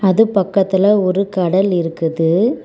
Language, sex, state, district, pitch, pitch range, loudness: Tamil, female, Tamil Nadu, Kanyakumari, 190 Hz, 175-200 Hz, -15 LUFS